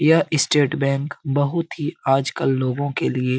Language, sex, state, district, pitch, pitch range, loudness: Hindi, male, Bihar, Jamui, 145 Hz, 135-155 Hz, -21 LUFS